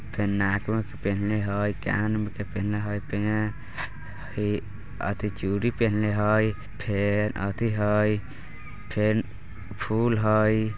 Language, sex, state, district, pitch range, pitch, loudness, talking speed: Bajjika, male, Bihar, Vaishali, 105-110 Hz, 105 Hz, -27 LUFS, 115 wpm